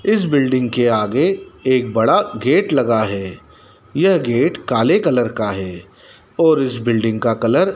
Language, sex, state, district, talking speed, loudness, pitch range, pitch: Hindi, male, Madhya Pradesh, Dhar, 160 wpm, -17 LUFS, 110-155 Hz, 120 Hz